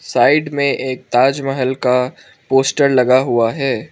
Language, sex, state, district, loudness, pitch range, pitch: Hindi, male, Arunachal Pradesh, Lower Dibang Valley, -15 LUFS, 125-140 Hz, 130 Hz